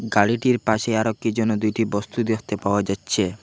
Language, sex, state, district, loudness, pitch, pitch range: Bengali, male, Assam, Hailakandi, -22 LUFS, 110 Hz, 105-115 Hz